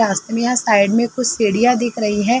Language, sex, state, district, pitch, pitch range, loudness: Hindi, female, Uttar Pradesh, Jalaun, 230 Hz, 210-240 Hz, -16 LUFS